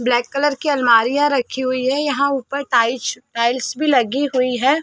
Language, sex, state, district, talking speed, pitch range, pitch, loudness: Hindi, female, Uttar Pradesh, Varanasi, 185 wpm, 245-285 Hz, 260 Hz, -18 LUFS